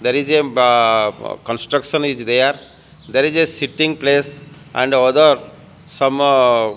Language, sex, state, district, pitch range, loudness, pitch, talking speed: English, male, Odisha, Malkangiri, 125-150 Hz, -15 LUFS, 140 Hz, 140 wpm